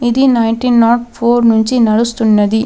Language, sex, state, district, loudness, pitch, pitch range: Telugu, female, Telangana, Komaram Bheem, -11 LUFS, 235 Hz, 225-240 Hz